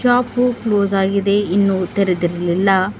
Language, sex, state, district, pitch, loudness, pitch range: Kannada, female, Karnataka, Bidar, 200 Hz, -17 LUFS, 185-210 Hz